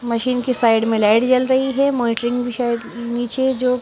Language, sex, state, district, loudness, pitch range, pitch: Hindi, female, Bihar, West Champaran, -18 LUFS, 235-255 Hz, 245 Hz